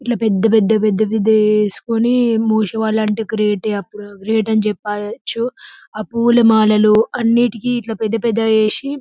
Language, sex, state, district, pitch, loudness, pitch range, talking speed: Telugu, female, Telangana, Karimnagar, 220 Hz, -16 LUFS, 215-230 Hz, 115 wpm